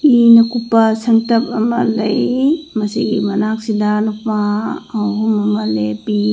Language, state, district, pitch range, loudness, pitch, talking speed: Manipuri, Manipur, Imphal West, 210-230 Hz, -15 LUFS, 220 Hz, 105 wpm